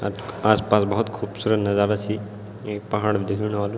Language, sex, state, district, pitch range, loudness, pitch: Garhwali, male, Uttarakhand, Tehri Garhwal, 100-105 Hz, -23 LUFS, 105 Hz